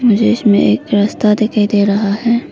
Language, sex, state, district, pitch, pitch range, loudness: Hindi, female, Arunachal Pradesh, Lower Dibang Valley, 210 Hz, 205-225 Hz, -13 LUFS